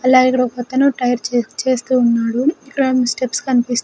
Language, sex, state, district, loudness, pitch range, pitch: Telugu, female, Andhra Pradesh, Sri Satya Sai, -16 LUFS, 245-260 Hz, 255 Hz